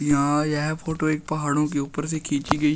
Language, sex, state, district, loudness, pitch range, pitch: Hindi, male, Uttar Pradesh, Shamli, -24 LUFS, 145-155 Hz, 150 Hz